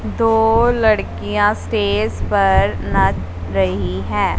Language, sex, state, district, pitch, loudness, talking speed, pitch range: Hindi, female, Punjab, Fazilka, 100 Hz, -17 LUFS, 95 wpm, 95-110 Hz